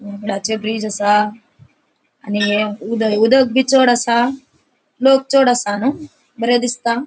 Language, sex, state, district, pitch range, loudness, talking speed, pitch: Konkani, female, Goa, North and South Goa, 210-260 Hz, -16 LUFS, 120 wpm, 235 Hz